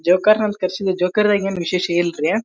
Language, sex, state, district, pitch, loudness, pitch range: Kannada, male, Karnataka, Bijapur, 185 Hz, -18 LUFS, 175-205 Hz